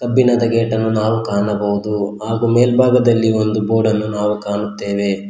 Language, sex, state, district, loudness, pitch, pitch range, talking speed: Kannada, male, Karnataka, Koppal, -16 LUFS, 110 Hz, 105-115 Hz, 135 wpm